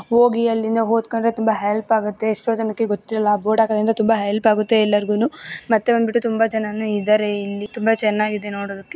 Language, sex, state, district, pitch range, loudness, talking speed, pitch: Kannada, female, Karnataka, Gulbarga, 210-225 Hz, -19 LUFS, 160 wpm, 220 Hz